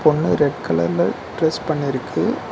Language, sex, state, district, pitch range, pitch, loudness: Tamil, male, Tamil Nadu, Nilgiris, 125-155 Hz, 145 Hz, -20 LUFS